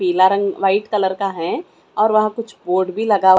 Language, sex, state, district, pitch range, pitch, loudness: Hindi, female, Maharashtra, Mumbai Suburban, 185-215 Hz, 195 Hz, -18 LUFS